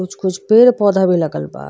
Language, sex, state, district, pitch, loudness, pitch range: Bhojpuri, female, Uttar Pradesh, Gorakhpur, 190 Hz, -14 LUFS, 160-200 Hz